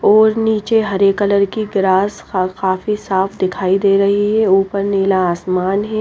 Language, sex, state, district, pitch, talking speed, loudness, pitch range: Hindi, female, Odisha, Nuapada, 200 Hz, 170 wpm, -15 LUFS, 190-210 Hz